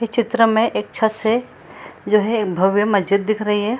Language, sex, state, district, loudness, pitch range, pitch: Hindi, female, Bihar, Samastipur, -18 LUFS, 205-230 Hz, 220 Hz